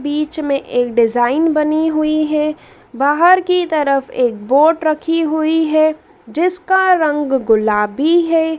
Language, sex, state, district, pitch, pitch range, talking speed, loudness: Hindi, female, Madhya Pradesh, Dhar, 310 Hz, 275-320 Hz, 135 wpm, -15 LUFS